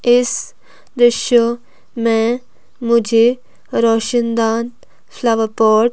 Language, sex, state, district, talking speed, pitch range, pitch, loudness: Hindi, female, Himachal Pradesh, Shimla, 80 wpm, 225-240 Hz, 235 Hz, -16 LUFS